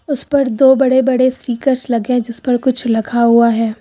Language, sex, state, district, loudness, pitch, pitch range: Hindi, female, Uttar Pradesh, Lucknow, -14 LUFS, 250 Hz, 235-265 Hz